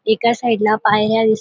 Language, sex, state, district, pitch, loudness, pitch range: Marathi, female, Maharashtra, Dhule, 220 Hz, -16 LUFS, 215-230 Hz